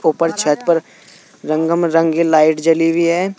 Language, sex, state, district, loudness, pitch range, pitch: Hindi, male, Uttar Pradesh, Saharanpur, -15 LUFS, 160-170 Hz, 165 Hz